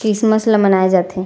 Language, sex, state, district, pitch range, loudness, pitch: Chhattisgarhi, female, Chhattisgarh, Raigarh, 185-215 Hz, -14 LUFS, 200 Hz